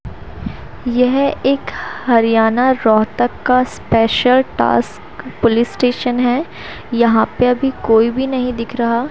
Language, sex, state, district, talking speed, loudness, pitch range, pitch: Hindi, female, Haryana, Rohtak, 120 wpm, -15 LUFS, 230-255 Hz, 245 Hz